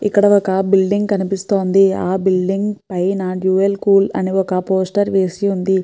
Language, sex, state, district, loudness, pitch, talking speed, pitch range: Telugu, female, Andhra Pradesh, Chittoor, -16 LUFS, 195 Hz, 145 wpm, 190-200 Hz